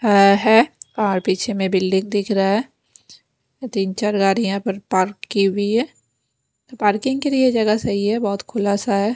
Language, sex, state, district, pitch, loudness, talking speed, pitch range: Hindi, female, Bihar, West Champaran, 205 Hz, -19 LUFS, 165 wpm, 195-225 Hz